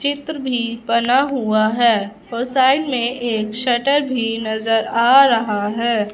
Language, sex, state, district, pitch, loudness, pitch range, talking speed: Hindi, female, Punjab, Fazilka, 235 Hz, -17 LUFS, 220-260 Hz, 145 wpm